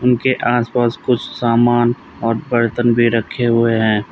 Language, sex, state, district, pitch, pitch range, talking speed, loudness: Hindi, male, Uttar Pradesh, Lalitpur, 120 Hz, 115-120 Hz, 160 wpm, -16 LUFS